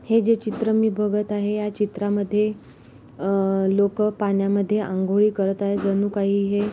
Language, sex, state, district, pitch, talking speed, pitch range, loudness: Marathi, female, Maharashtra, Pune, 205 Hz, 150 wpm, 195-210 Hz, -22 LUFS